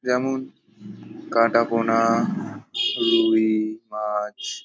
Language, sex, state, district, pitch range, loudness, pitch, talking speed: Bengali, male, West Bengal, Jalpaiguri, 110-115 Hz, -22 LUFS, 115 Hz, 65 wpm